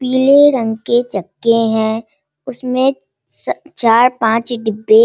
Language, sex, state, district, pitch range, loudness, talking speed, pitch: Hindi, female, Bihar, Sitamarhi, 225-260 Hz, -14 LUFS, 130 wpm, 235 Hz